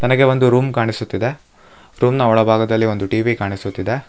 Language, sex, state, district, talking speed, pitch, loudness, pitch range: Kannada, male, Karnataka, Bangalore, 145 wpm, 115 Hz, -17 LUFS, 110-125 Hz